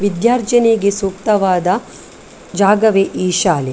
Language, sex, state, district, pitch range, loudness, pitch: Kannada, female, Karnataka, Dakshina Kannada, 185-220 Hz, -14 LUFS, 200 Hz